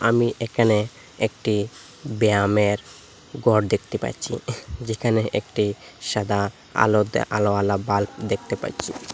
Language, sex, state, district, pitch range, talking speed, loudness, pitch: Bengali, male, Assam, Hailakandi, 100-110 Hz, 105 wpm, -23 LUFS, 105 Hz